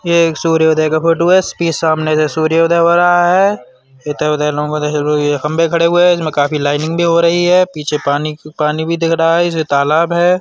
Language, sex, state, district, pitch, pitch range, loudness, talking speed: Bundeli, male, Uttar Pradesh, Budaun, 160 Hz, 150-170 Hz, -13 LUFS, 190 wpm